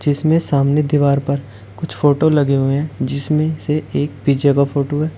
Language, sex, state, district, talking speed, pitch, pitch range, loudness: Hindi, male, Uttar Pradesh, Shamli, 185 wpm, 145 Hz, 140-150 Hz, -17 LUFS